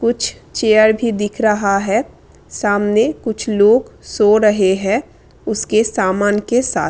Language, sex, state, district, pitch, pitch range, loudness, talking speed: Hindi, female, Delhi, New Delhi, 215 Hz, 205-225 Hz, -15 LUFS, 140 wpm